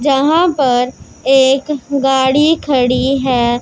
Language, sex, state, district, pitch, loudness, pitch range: Hindi, female, Punjab, Pathankot, 270 Hz, -13 LUFS, 255-285 Hz